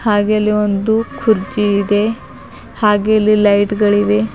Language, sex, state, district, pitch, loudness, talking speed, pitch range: Kannada, female, Karnataka, Bidar, 210 Hz, -14 LUFS, 125 wpm, 205-215 Hz